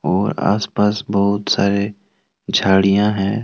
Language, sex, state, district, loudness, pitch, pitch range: Hindi, male, Jharkhand, Deoghar, -17 LUFS, 100 Hz, 100-105 Hz